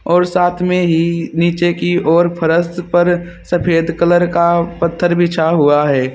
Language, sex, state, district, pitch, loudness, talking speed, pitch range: Hindi, male, Uttar Pradesh, Saharanpur, 170 Hz, -14 LUFS, 155 wpm, 165-175 Hz